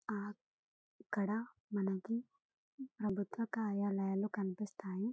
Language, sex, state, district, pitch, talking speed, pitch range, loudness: Telugu, female, Telangana, Karimnagar, 210 Hz, 80 wpm, 200-225 Hz, -40 LUFS